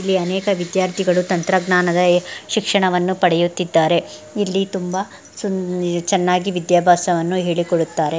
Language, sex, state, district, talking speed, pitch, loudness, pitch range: Kannada, female, Karnataka, Dakshina Kannada, 100 wpm, 180 Hz, -18 LUFS, 175-190 Hz